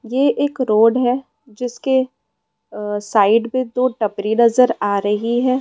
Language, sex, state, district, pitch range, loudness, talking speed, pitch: Hindi, female, Bihar, Jamui, 215-255 Hz, -17 LUFS, 150 wpm, 240 Hz